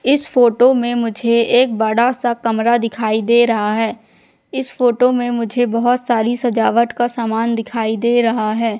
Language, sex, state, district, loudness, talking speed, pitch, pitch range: Hindi, female, Madhya Pradesh, Katni, -16 LUFS, 170 wpm, 235 Hz, 230-245 Hz